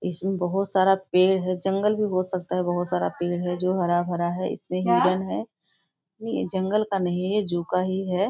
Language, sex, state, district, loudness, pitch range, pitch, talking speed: Hindi, female, Bihar, Muzaffarpur, -24 LUFS, 180-195 Hz, 185 Hz, 200 wpm